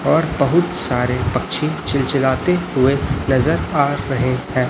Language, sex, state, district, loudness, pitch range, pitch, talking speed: Hindi, male, Chhattisgarh, Raipur, -18 LUFS, 130-155 Hz, 135 Hz, 125 wpm